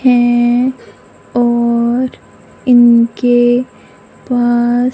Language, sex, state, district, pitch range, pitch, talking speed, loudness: Hindi, male, Punjab, Fazilka, 240-245 Hz, 240 Hz, 50 wpm, -12 LUFS